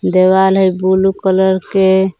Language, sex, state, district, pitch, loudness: Magahi, female, Jharkhand, Palamu, 190 Hz, -12 LUFS